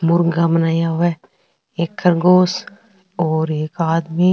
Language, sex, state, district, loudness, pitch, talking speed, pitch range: Rajasthani, female, Rajasthan, Nagaur, -17 LUFS, 170 Hz, 125 wpm, 165-180 Hz